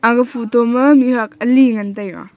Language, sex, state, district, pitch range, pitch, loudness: Wancho, female, Arunachal Pradesh, Longding, 220-250 Hz, 235 Hz, -14 LUFS